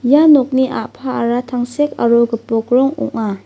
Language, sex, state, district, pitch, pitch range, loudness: Garo, female, Meghalaya, South Garo Hills, 250 Hz, 235-265 Hz, -15 LUFS